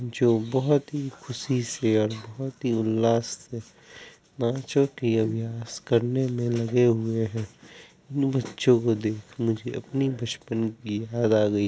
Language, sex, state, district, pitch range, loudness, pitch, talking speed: Hindi, male, Bihar, Kishanganj, 110-130 Hz, -26 LUFS, 115 Hz, 135 wpm